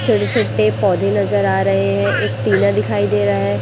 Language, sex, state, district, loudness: Hindi, female, Chhattisgarh, Raipur, -16 LUFS